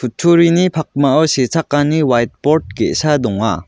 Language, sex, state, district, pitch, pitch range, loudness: Garo, male, Meghalaya, West Garo Hills, 150 Hz, 125-160 Hz, -14 LUFS